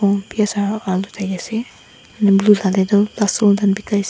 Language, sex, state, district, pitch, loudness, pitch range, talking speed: Nagamese, female, Nagaland, Dimapur, 205 Hz, -17 LUFS, 195-210 Hz, 160 wpm